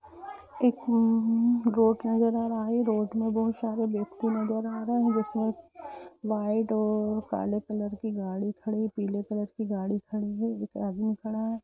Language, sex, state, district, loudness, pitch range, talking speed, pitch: Hindi, female, Jharkhand, Jamtara, -29 LUFS, 210-230 Hz, 175 wpm, 220 Hz